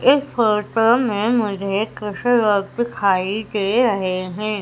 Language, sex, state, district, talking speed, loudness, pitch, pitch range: Hindi, female, Madhya Pradesh, Umaria, 130 wpm, -19 LUFS, 210 Hz, 200-240 Hz